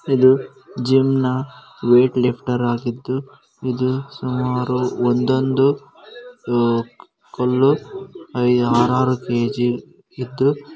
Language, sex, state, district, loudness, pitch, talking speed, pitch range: Kannada, male, Karnataka, Dharwad, -19 LUFS, 125 Hz, 70 wpm, 125-135 Hz